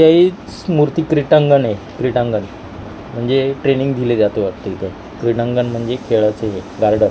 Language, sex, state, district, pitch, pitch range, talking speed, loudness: Marathi, male, Maharashtra, Mumbai Suburban, 120 Hz, 105-135 Hz, 145 wpm, -16 LUFS